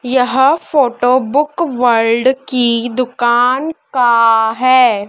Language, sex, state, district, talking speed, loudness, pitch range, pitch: Hindi, female, Madhya Pradesh, Dhar, 95 wpm, -13 LUFS, 240-265 Hz, 250 Hz